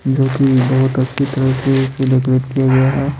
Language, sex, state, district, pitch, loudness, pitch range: Hindi, male, Bihar, Patna, 135 Hz, -15 LUFS, 130-135 Hz